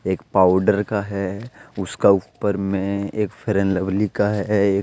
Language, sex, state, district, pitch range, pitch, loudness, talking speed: Hindi, male, Jharkhand, Deoghar, 95-105 Hz, 100 Hz, -20 LUFS, 135 wpm